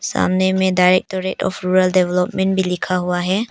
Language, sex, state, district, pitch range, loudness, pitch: Hindi, female, Arunachal Pradesh, Papum Pare, 180-190 Hz, -17 LUFS, 185 Hz